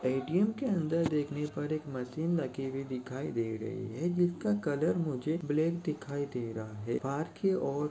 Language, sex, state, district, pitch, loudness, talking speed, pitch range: Hindi, male, Chhattisgarh, Sarguja, 150 Hz, -33 LUFS, 180 wpm, 130-165 Hz